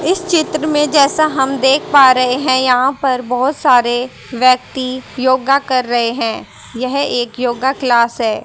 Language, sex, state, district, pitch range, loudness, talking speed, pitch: Hindi, female, Haryana, Jhajjar, 250-275 Hz, -14 LUFS, 165 wpm, 260 Hz